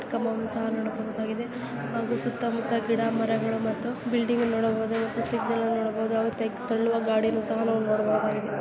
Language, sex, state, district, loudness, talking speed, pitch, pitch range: Kannada, female, Karnataka, Raichur, -27 LUFS, 120 wpm, 225 Hz, 220-230 Hz